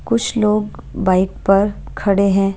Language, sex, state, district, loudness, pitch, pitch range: Hindi, female, Punjab, Pathankot, -17 LUFS, 200 Hz, 195-210 Hz